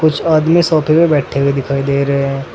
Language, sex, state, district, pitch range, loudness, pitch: Hindi, male, Uttar Pradesh, Saharanpur, 140-155 Hz, -13 LUFS, 140 Hz